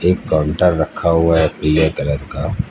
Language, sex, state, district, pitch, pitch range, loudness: Hindi, male, Uttar Pradesh, Lucknow, 80 Hz, 75-85 Hz, -16 LUFS